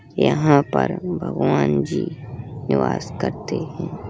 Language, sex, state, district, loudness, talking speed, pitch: Hindi, male, Uttar Pradesh, Hamirpur, -21 LUFS, 100 wpm, 150 Hz